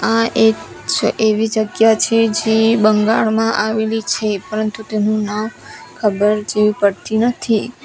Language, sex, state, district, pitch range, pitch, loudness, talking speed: Gujarati, female, Gujarat, Valsad, 210-225 Hz, 215 Hz, -16 LUFS, 130 wpm